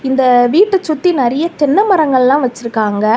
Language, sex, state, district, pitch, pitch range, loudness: Tamil, female, Tamil Nadu, Kanyakumari, 270 Hz, 245-330 Hz, -12 LUFS